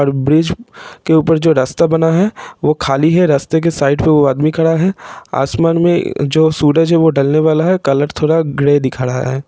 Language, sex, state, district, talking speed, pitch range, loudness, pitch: Hindi, male, Jharkhand, Jamtara, 220 wpm, 140-165 Hz, -13 LUFS, 155 Hz